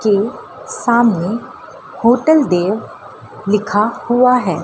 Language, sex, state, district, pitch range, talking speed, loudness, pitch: Hindi, female, Madhya Pradesh, Dhar, 205-240 Hz, 90 wpm, -15 LUFS, 220 Hz